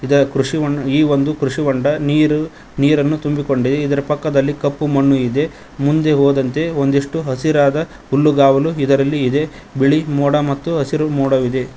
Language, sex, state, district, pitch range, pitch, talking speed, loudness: Kannada, male, Karnataka, Koppal, 135-150 Hz, 145 Hz, 125 wpm, -16 LUFS